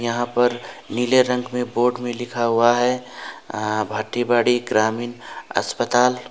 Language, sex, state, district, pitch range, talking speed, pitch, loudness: Hindi, male, West Bengal, Alipurduar, 120-125 Hz, 135 wpm, 120 Hz, -21 LUFS